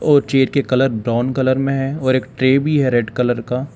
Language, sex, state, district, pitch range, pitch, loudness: Hindi, male, Telangana, Hyderabad, 125-135 Hz, 130 Hz, -17 LUFS